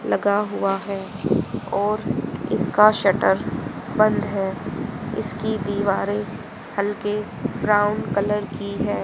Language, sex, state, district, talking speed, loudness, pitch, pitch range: Hindi, female, Haryana, Charkhi Dadri, 100 wpm, -22 LUFS, 205 Hz, 200-210 Hz